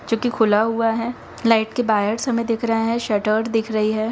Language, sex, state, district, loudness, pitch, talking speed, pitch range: Hindi, female, Bihar, Darbhanga, -20 LUFS, 225 Hz, 220 wpm, 215-230 Hz